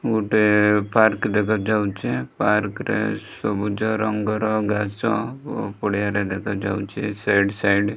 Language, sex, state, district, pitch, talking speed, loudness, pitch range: Odia, male, Odisha, Malkangiri, 105 Hz, 105 wpm, -22 LUFS, 100-110 Hz